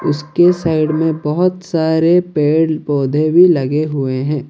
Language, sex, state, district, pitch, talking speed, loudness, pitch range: Hindi, male, Odisha, Khordha, 155 Hz, 145 wpm, -14 LUFS, 150-170 Hz